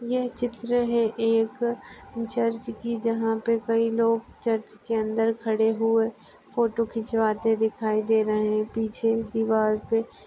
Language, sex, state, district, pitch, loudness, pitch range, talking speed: Hindi, female, Maharashtra, Aurangabad, 225 Hz, -25 LUFS, 220-230 Hz, 145 wpm